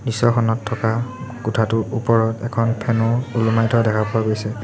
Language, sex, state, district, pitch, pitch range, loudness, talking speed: Assamese, male, Assam, Sonitpur, 115 Hz, 110-115 Hz, -20 LUFS, 155 wpm